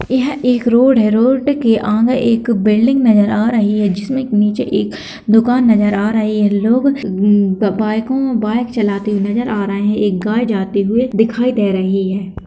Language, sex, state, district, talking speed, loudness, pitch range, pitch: Hindi, female, Bihar, Darbhanga, 190 wpm, -14 LUFS, 205-240 Hz, 220 Hz